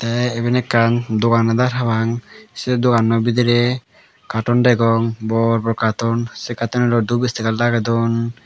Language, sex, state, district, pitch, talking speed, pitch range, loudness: Chakma, male, Tripura, Dhalai, 115 Hz, 140 wpm, 115-120 Hz, -18 LUFS